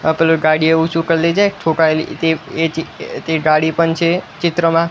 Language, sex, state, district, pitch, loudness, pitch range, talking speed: Gujarati, male, Gujarat, Gandhinagar, 165 Hz, -15 LUFS, 160-170 Hz, 170 wpm